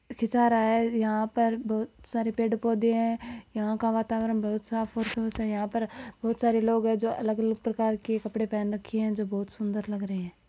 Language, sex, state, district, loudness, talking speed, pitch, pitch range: Marwari, female, Rajasthan, Churu, -28 LUFS, 225 wpm, 225 Hz, 215-230 Hz